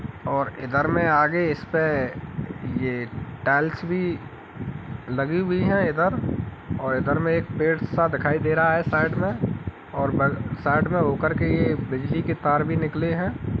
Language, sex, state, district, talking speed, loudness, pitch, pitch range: Hindi, male, Uttar Pradesh, Etah, 155 wpm, -24 LUFS, 155 Hz, 135-165 Hz